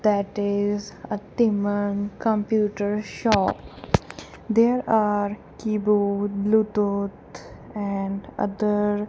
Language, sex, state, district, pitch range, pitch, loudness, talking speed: English, female, Punjab, Kapurthala, 205-215 Hz, 205 Hz, -24 LUFS, 85 wpm